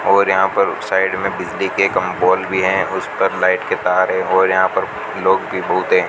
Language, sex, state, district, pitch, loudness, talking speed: Hindi, male, Rajasthan, Bikaner, 95 Hz, -16 LUFS, 235 wpm